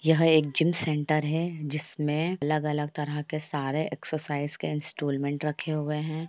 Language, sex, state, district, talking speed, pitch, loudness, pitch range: Hindi, female, Jharkhand, Sahebganj, 155 wpm, 150 Hz, -28 LUFS, 150-155 Hz